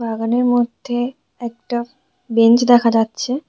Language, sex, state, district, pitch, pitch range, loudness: Bengali, female, West Bengal, Alipurduar, 240 Hz, 230-245 Hz, -17 LUFS